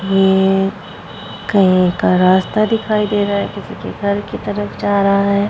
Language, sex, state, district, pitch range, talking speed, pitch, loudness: Hindi, female, Bihar, Vaishali, 190-205 Hz, 175 wpm, 200 Hz, -15 LUFS